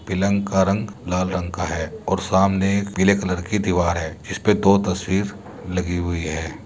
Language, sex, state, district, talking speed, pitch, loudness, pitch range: Hindi, male, Uttar Pradesh, Muzaffarnagar, 200 wpm, 95 Hz, -21 LUFS, 90-100 Hz